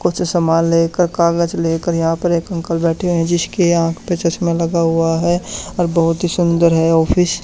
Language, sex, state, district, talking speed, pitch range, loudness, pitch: Hindi, male, Haryana, Charkhi Dadri, 200 wpm, 165-175 Hz, -16 LUFS, 170 Hz